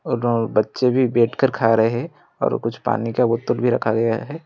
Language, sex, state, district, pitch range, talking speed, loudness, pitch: Hindi, male, Odisha, Khordha, 115-125 Hz, 230 wpm, -20 LUFS, 120 Hz